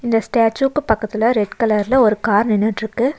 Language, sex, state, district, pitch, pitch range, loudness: Tamil, female, Tamil Nadu, Nilgiris, 225 Hz, 215-240 Hz, -17 LUFS